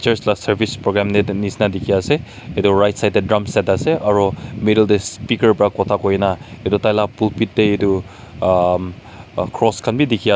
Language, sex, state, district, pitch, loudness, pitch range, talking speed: Nagamese, male, Nagaland, Kohima, 105 Hz, -17 LUFS, 100-115 Hz, 185 wpm